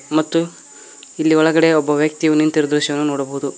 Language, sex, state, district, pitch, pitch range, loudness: Kannada, male, Karnataka, Koppal, 155 Hz, 150-160 Hz, -16 LUFS